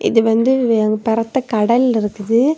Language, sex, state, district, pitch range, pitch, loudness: Tamil, female, Tamil Nadu, Kanyakumari, 220-255 Hz, 225 Hz, -16 LUFS